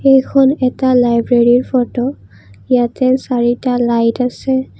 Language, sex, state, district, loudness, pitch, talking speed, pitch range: Assamese, female, Assam, Kamrup Metropolitan, -14 LUFS, 250 Hz, 100 wpm, 240-260 Hz